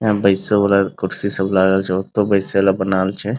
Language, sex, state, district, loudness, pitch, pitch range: Maithili, male, Bihar, Muzaffarpur, -16 LUFS, 100 Hz, 95-100 Hz